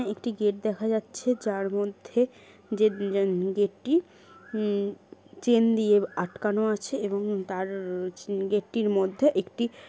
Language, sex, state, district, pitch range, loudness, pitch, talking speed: Bengali, female, West Bengal, Kolkata, 195-220 Hz, -27 LUFS, 205 Hz, 105 wpm